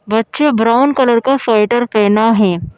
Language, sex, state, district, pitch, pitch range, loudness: Hindi, female, Madhya Pradesh, Bhopal, 230 Hz, 210-250 Hz, -12 LUFS